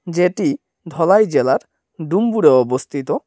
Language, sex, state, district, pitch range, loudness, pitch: Bengali, male, Tripura, Dhalai, 160-215 Hz, -16 LUFS, 180 Hz